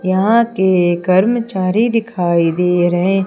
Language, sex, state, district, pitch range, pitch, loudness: Hindi, female, Madhya Pradesh, Umaria, 175-220 Hz, 185 Hz, -14 LUFS